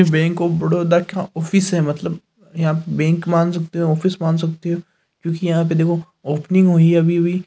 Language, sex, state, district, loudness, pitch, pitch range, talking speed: Hindi, male, Rajasthan, Nagaur, -18 LUFS, 170 Hz, 165-175 Hz, 215 wpm